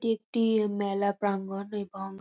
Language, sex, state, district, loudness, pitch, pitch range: Bengali, female, West Bengal, North 24 Parganas, -29 LUFS, 200 Hz, 195-220 Hz